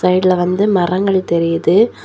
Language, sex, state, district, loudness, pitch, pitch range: Tamil, female, Tamil Nadu, Kanyakumari, -14 LUFS, 185 Hz, 175-190 Hz